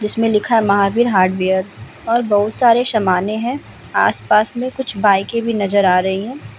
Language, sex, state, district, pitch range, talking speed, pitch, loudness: Hindi, female, Bihar, Vaishali, 195-235 Hz, 175 wpm, 210 Hz, -16 LUFS